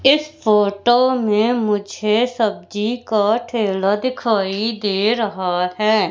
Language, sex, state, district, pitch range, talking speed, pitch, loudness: Hindi, female, Madhya Pradesh, Katni, 205-235 Hz, 110 wpm, 215 Hz, -18 LUFS